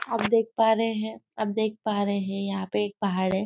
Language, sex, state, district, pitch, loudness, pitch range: Hindi, female, Maharashtra, Nagpur, 210 Hz, -26 LUFS, 200-220 Hz